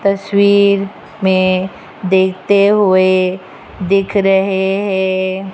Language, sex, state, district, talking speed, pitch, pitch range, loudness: Hindi, female, Rajasthan, Jaipur, 75 wpm, 190 Hz, 185-200 Hz, -13 LUFS